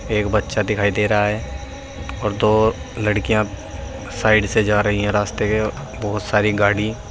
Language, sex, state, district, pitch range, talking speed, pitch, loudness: Hindi, male, Uttar Pradesh, Saharanpur, 105-110 Hz, 160 wpm, 105 Hz, -19 LUFS